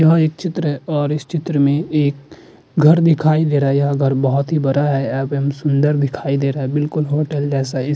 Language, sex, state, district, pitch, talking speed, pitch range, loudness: Hindi, male, Uttarakhand, Tehri Garhwal, 145 Hz, 235 wpm, 140-155 Hz, -17 LUFS